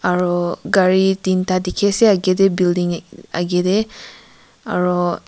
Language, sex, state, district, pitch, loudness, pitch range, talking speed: Nagamese, female, Nagaland, Kohima, 185 Hz, -17 LUFS, 180-190 Hz, 135 wpm